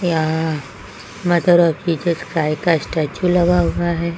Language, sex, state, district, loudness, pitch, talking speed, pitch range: Hindi, female, Uttar Pradesh, Lucknow, -18 LUFS, 170 Hz, 130 wpm, 155-175 Hz